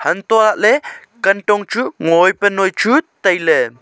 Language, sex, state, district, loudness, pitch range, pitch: Wancho, male, Arunachal Pradesh, Longding, -14 LUFS, 195-225 Hz, 205 Hz